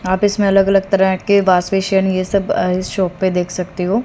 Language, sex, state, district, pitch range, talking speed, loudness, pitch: Hindi, female, Haryana, Rohtak, 185-195 Hz, 235 wpm, -16 LUFS, 190 Hz